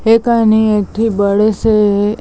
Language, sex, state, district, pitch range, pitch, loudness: Chhattisgarhi, female, Chhattisgarh, Bilaspur, 205-225 Hz, 215 Hz, -12 LUFS